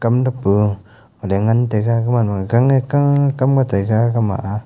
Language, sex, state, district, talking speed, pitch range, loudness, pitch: Wancho, male, Arunachal Pradesh, Longding, 180 wpm, 105-130 Hz, -16 LUFS, 115 Hz